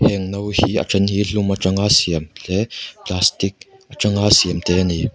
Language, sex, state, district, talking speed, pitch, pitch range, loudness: Mizo, male, Mizoram, Aizawl, 185 wpm, 100 Hz, 90-105 Hz, -18 LUFS